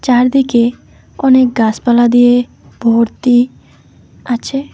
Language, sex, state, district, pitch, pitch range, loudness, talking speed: Bengali, female, West Bengal, Alipurduar, 245 Hz, 240-255 Hz, -12 LUFS, 75 wpm